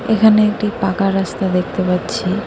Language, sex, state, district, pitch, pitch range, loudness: Bengali, female, West Bengal, Cooch Behar, 195 Hz, 185-215 Hz, -16 LUFS